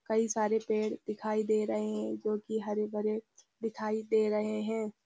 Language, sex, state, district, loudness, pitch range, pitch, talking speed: Hindi, female, Uttarakhand, Uttarkashi, -33 LUFS, 210-220 Hz, 215 Hz, 180 wpm